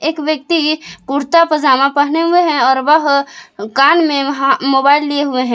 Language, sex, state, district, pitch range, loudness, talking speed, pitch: Hindi, female, Jharkhand, Palamu, 270-310 Hz, -13 LUFS, 160 wpm, 285 Hz